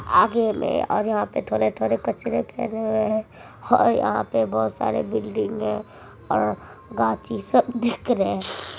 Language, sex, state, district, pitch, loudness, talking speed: Maithili, male, Bihar, Supaul, 215 Hz, -23 LUFS, 155 wpm